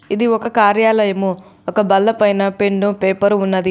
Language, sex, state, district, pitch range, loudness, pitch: Telugu, female, Telangana, Adilabad, 195-215 Hz, -15 LUFS, 205 Hz